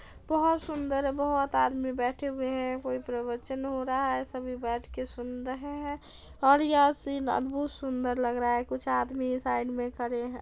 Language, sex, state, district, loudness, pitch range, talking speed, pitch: Hindi, female, Bihar, Darbhanga, -30 LUFS, 245-275 Hz, 185 wpm, 260 Hz